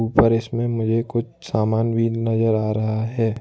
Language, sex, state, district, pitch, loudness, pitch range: Hindi, male, Jharkhand, Ranchi, 115 Hz, -21 LUFS, 110-115 Hz